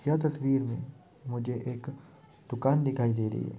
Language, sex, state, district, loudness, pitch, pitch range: Hindi, male, Maharashtra, Sindhudurg, -30 LUFS, 135 Hz, 125-145 Hz